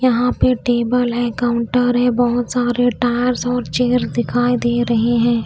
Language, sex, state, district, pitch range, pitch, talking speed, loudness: Hindi, female, Delhi, New Delhi, 240-245 Hz, 245 Hz, 165 wpm, -17 LUFS